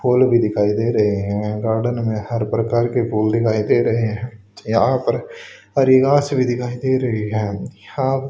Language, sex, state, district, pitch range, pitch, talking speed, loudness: Hindi, male, Haryana, Charkhi Dadri, 105-125 Hz, 115 Hz, 175 wpm, -18 LUFS